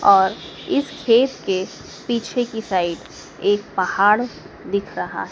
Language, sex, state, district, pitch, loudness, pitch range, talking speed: Hindi, female, Madhya Pradesh, Dhar, 210 Hz, -20 LUFS, 195-240 Hz, 125 wpm